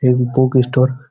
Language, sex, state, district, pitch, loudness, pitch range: Bengali, male, West Bengal, Malda, 130 Hz, -15 LUFS, 125-130 Hz